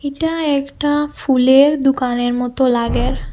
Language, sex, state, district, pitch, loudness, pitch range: Bengali, female, Assam, Hailakandi, 270 Hz, -16 LUFS, 245-290 Hz